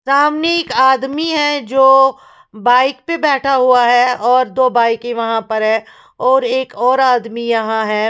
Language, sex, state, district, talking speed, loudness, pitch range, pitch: Hindi, female, Bihar, Patna, 165 wpm, -14 LUFS, 235-270 Hz, 255 Hz